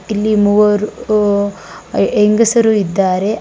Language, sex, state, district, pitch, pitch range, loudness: Kannada, female, Karnataka, Bangalore, 210 Hz, 205-215 Hz, -13 LUFS